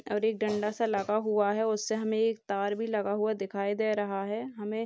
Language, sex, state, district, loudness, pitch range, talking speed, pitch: Hindi, male, Bihar, Purnia, -30 LUFS, 205-220 Hz, 245 wpm, 215 Hz